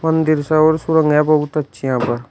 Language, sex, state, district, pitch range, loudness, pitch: Hindi, male, Uttar Pradesh, Shamli, 140-160 Hz, -16 LUFS, 155 Hz